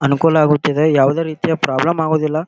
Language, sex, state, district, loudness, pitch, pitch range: Kannada, male, Karnataka, Gulbarga, -15 LUFS, 155 Hz, 145-160 Hz